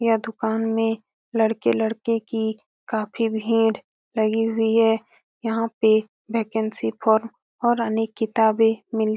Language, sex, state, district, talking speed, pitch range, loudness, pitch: Hindi, female, Bihar, Lakhisarai, 125 wpm, 220-225 Hz, -23 LUFS, 225 Hz